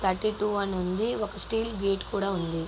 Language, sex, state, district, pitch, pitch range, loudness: Telugu, female, Andhra Pradesh, Guntur, 200 Hz, 190-215 Hz, -29 LUFS